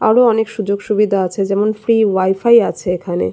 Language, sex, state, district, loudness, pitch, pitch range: Bengali, female, West Bengal, Jalpaiguri, -15 LUFS, 210 Hz, 190-220 Hz